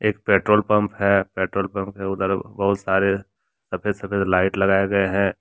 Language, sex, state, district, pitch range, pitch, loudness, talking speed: Hindi, male, Jharkhand, Deoghar, 95-100 Hz, 100 Hz, -21 LUFS, 165 wpm